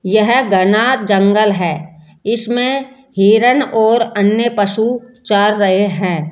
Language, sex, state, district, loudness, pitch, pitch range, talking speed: Hindi, female, Rajasthan, Jaipur, -13 LUFS, 215 Hz, 195-240 Hz, 115 wpm